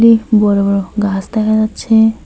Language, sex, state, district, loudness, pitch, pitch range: Bengali, male, West Bengal, Alipurduar, -13 LUFS, 215 Hz, 200-220 Hz